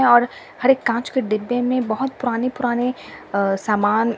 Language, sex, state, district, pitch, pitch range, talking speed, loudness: Hindi, female, Delhi, New Delhi, 240 Hz, 220-255 Hz, 145 wpm, -20 LUFS